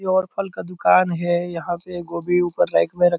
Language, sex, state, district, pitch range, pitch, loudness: Hindi, male, Bihar, Purnia, 170-180 Hz, 175 Hz, -21 LUFS